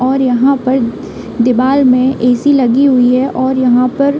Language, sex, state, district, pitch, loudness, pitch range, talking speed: Hindi, female, Uttar Pradesh, Hamirpur, 255 Hz, -11 LUFS, 250-270 Hz, 185 wpm